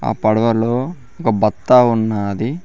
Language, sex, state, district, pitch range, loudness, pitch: Telugu, male, Telangana, Mahabubabad, 110-125 Hz, -16 LUFS, 115 Hz